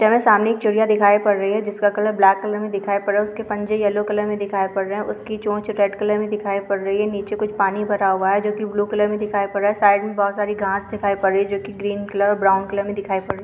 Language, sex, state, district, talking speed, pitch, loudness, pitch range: Hindi, female, Chhattisgarh, Jashpur, 310 wpm, 205 Hz, -20 LUFS, 200-210 Hz